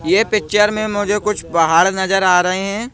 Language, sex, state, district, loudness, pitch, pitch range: Hindi, male, Madhya Pradesh, Bhopal, -15 LUFS, 205 Hz, 185-215 Hz